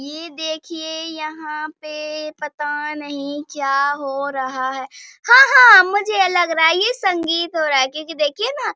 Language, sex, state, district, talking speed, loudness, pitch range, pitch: Hindi, female, Bihar, Bhagalpur, 170 wpm, -16 LUFS, 290-335 Hz, 310 Hz